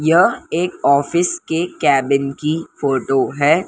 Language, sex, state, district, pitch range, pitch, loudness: Hindi, female, Maharashtra, Mumbai Suburban, 140-170 Hz, 150 Hz, -17 LUFS